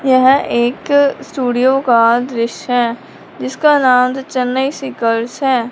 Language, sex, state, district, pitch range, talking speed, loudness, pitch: Hindi, male, Punjab, Fazilka, 240-270 Hz, 115 wpm, -14 LUFS, 255 Hz